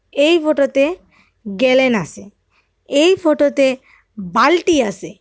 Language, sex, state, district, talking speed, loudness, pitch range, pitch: Bengali, female, Assam, Hailakandi, 90 wpm, -15 LUFS, 195-290 Hz, 260 Hz